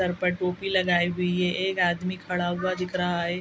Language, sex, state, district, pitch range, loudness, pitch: Hindi, female, Bihar, Araria, 175-185 Hz, -26 LUFS, 180 Hz